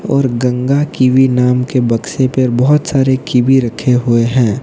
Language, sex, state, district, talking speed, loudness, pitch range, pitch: Hindi, male, Odisha, Nuapada, 170 wpm, -12 LUFS, 125-135 Hz, 130 Hz